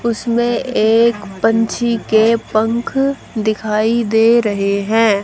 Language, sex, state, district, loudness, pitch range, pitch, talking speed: Hindi, female, Haryana, Rohtak, -15 LUFS, 215-235 Hz, 225 Hz, 105 wpm